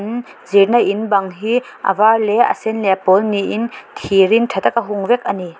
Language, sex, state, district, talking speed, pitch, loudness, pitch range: Mizo, female, Mizoram, Aizawl, 225 wpm, 210 Hz, -15 LUFS, 195-235 Hz